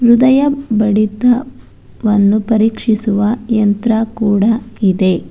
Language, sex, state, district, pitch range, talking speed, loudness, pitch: Kannada, female, Karnataka, Bangalore, 210-235 Hz, 80 wpm, -13 LUFS, 220 Hz